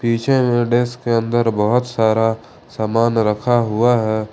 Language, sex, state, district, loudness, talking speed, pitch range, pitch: Hindi, male, Jharkhand, Ranchi, -17 LUFS, 150 wpm, 110-120 Hz, 115 Hz